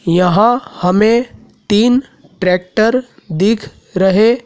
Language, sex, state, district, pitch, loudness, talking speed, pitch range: Hindi, male, Madhya Pradesh, Dhar, 215 Hz, -14 LUFS, 80 wpm, 185-240 Hz